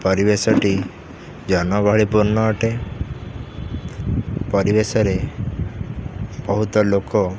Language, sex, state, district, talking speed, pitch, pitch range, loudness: Odia, male, Odisha, Khordha, 65 wpm, 105 Hz, 95-110 Hz, -20 LUFS